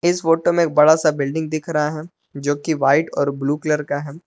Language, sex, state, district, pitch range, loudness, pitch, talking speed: Hindi, male, Jharkhand, Palamu, 145-160 Hz, -19 LUFS, 150 Hz, 255 wpm